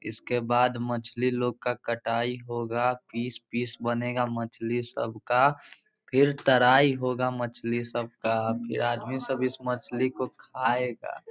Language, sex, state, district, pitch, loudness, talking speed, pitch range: Hindi, male, Bihar, Muzaffarpur, 120 Hz, -27 LUFS, 140 wpm, 120-125 Hz